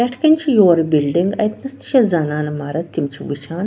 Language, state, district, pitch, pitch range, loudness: Kashmiri, Punjab, Kapurthala, 175 Hz, 150-240 Hz, -17 LUFS